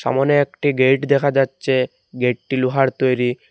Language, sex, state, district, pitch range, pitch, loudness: Bengali, male, Assam, Hailakandi, 130-140 Hz, 135 Hz, -18 LUFS